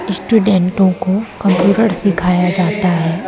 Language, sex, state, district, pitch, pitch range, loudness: Hindi, female, Madhya Pradesh, Umaria, 190 Hz, 180-200 Hz, -14 LUFS